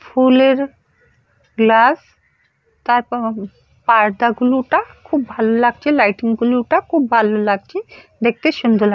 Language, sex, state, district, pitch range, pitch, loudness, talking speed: Bengali, female, West Bengal, Purulia, 225-270 Hz, 240 Hz, -16 LUFS, 125 wpm